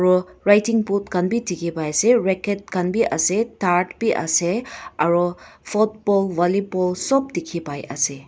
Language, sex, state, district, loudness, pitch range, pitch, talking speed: Nagamese, female, Nagaland, Dimapur, -20 LUFS, 175-215 Hz, 185 Hz, 125 wpm